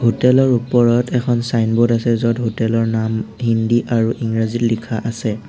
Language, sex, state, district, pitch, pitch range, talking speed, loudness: Assamese, male, Assam, Hailakandi, 115 Hz, 115-120 Hz, 140 wpm, -17 LUFS